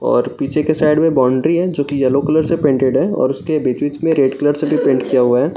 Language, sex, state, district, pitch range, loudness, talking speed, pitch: Hindi, male, Bihar, Gaya, 130-160 Hz, -15 LUFS, 270 wpm, 145 Hz